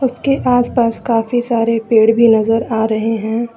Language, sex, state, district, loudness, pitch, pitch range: Hindi, female, Jharkhand, Ranchi, -14 LUFS, 230 Hz, 225-245 Hz